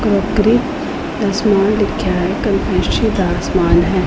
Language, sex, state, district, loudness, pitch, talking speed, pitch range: Punjabi, female, Punjab, Pathankot, -15 LUFS, 210 Hz, 135 wpm, 195-225 Hz